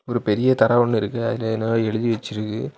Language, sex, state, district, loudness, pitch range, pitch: Tamil, male, Tamil Nadu, Kanyakumari, -21 LUFS, 110-120 Hz, 115 Hz